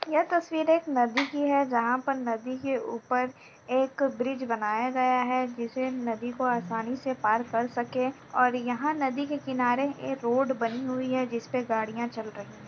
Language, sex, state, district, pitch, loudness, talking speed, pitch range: Hindi, female, Uttar Pradesh, Etah, 255 Hz, -28 LUFS, 190 wpm, 235-265 Hz